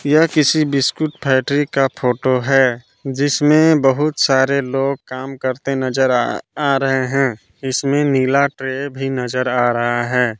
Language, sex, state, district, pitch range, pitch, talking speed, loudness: Hindi, male, Jharkhand, Palamu, 130-140 Hz, 135 Hz, 150 wpm, -17 LUFS